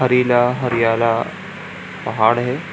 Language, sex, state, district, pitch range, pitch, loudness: Hindi, male, Bihar, Jamui, 115-125 Hz, 120 Hz, -17 LUFS